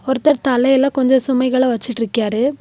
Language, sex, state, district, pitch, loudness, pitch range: Tamil, female, Tamil Nadu, Kanyakumari, 260 Hz, -16 LUFS, 245-265 Hz